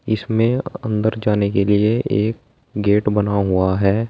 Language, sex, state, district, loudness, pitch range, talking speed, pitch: Hindi, male, Uttar Pradesh, Saharanpur, -18 LUFS, 100-115 Hz, 145 wpm, 105 Hz